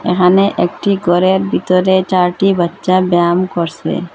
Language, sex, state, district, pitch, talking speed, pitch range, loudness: Bengali, female, Assam, Hailakandi, 185 Hz, 115 wpm, 175-190 Hz, -13 LUFS